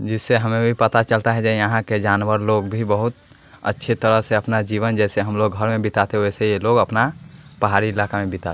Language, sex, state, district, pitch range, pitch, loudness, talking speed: Hindi, male, Bihar, West Champaran, 105-115 Hz, 110 Hz, -19 LUFS, 225 wpm